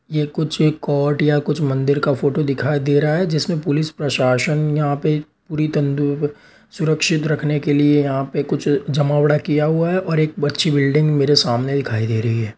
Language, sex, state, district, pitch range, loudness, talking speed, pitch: Hindi, male, Uttar Pradesh, Varanasi, 145-155 Hz, -18 LUFS, 185 wpm, 150 Hz